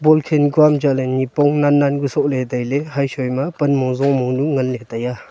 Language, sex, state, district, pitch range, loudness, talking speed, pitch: Wancho, male, Arunachal Pradesh, Longding, 130-145 Hz, -17 LUFS, 180 wpm, 140 Hz